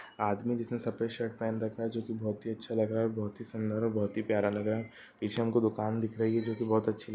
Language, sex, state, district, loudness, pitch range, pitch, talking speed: Hindi, male, Chhattisgarh, Bilaspur, -33 LUFS, 110-115 Hz, 110 Hz, 325 wpm